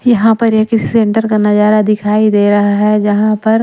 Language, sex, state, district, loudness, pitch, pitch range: Hindi, female, Maharashtra, Washim, -11 LUFS, 215 Hz, 210-225 Hz